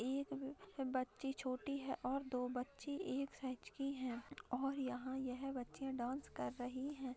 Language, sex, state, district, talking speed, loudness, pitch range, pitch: Hindi, female, Maharashtra, Nagpur, 175 wpm, -45 LUFS, 255-275 Hz, 265 Hz